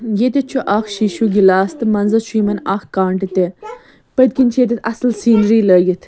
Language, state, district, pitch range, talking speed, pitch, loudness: Kashmiri, Punjab, Kapurthala, 195-240 Hz, 165 wpm, 215 Hz, -15 LUFS